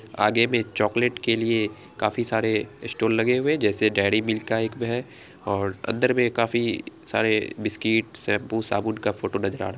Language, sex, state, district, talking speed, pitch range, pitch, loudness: Angika, female, Bihar, Araria, 190 wpm, 105-120 Hz, 110 Hz, -24 LUFS